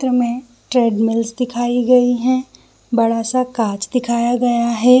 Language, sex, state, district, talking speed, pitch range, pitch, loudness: Hindi, female, Chhattisgarh, Bilaspur, 130 wpm, 235-250 Hz, 245 Hz, -17 LUFS